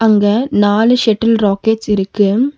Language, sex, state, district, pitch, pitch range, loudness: Tamil, female, Tamil Nadu, Nilgiris, 220 Hz, 205-230 Hz, -13 LUFS